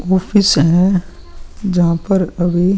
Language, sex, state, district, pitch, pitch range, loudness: Hindi, female, Bihar, Vaishali, 180 Hz, 170-190 Hz, -14 LUFS